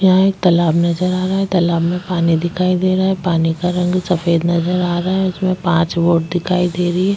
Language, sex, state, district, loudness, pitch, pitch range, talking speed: Hindi, female, Chhattisgarh, Jashpur, -16 LUFS, 180 Hz, 170-185 Hz, 240 wpm